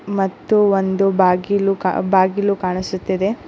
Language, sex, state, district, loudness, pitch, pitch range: Kannada, female, Karnataka, Koppal, -17 LUFS, 195 Hz, 185-200 Hz